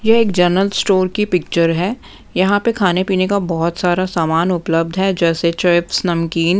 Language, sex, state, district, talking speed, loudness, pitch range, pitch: Hindi, female, Punjab, Pathankot, 170 wpm, -16 LUFS, 170-195 Hz, 180 Hz